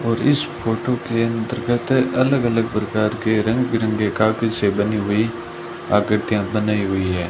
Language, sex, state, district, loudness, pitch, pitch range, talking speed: Hindi, male, Rajasthan, Bikaner, -20 LUFS, 115 Hz, 105-115 Hz, 155 wpm